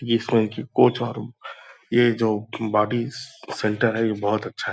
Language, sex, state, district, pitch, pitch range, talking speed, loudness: Hindi, male, Bihar, Purnia, 115 Hz, 110-120 Hz, 115 wpm, -22 LUFS